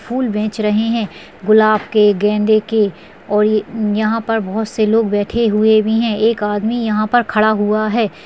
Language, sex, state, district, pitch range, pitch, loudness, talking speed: Hindi, female, West Bengal, Dakshin Dinajpur, 210-225 Hz, 215 Hz, -15 LUFS, 180 wpm